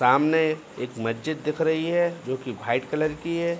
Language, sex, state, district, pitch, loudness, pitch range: Hindi, male, Bihar, Begusarai, 155 Hz, -25 LUFS, 125-160 Hz